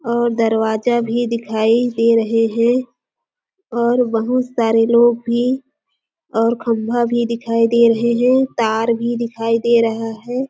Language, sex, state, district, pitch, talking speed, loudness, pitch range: Hindi, female, Chhattisgarh, Sarguja, 235 Hz, 145 wpm, -17 LUFS, 230-245 Hz